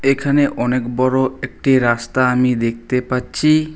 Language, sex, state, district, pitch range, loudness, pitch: Bengali, male, West Bengal, Alipurduar, 125-135 Hz, -17 LUFS, 130 Hz